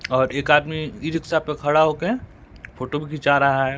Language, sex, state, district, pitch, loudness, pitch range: Hindi, male, Bihar, West Champaran, 150 Hz, -21 LUFS, 140-155 Hz